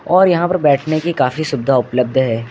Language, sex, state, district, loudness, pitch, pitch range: Hindi, male, Uttar Pradesh, Lucknow, -15 LUFS, 140 Hz, 125-170 Hz